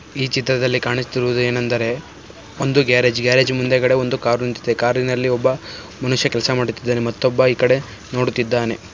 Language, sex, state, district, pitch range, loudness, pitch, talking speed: Kannada, male, Karnataka, Shimoga, 120-130 Hz, -18 LUFS, 125 Hz, 135 wpm